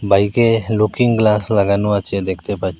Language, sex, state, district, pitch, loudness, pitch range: Bengali, male, Assam, Hailakandi, 105 Hz, -16 LUFS, 100-110 Hz